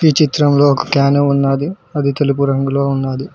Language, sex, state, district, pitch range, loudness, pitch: Telugu, male, Telangana, Mahabubabad, 135-145 Hz, -14 LUFS, 140 Hz